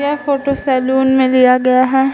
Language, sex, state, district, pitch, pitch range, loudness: Hindi, female, Bihar, Vaishali, 265 Hz, 255-275 Hz, -13 LUFS